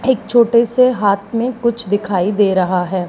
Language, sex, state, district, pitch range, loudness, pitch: Hindi, female, Haryana, Charkhi Dadri, 190-235 Hz, -15 LUFS, 210 Hz